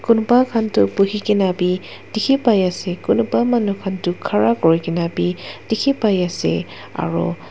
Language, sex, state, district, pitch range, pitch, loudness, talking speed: Nagamese, female, Nagaland, Dimapur, 165-220 Hz, 180 Hz, -18 LUFS, 170 wpm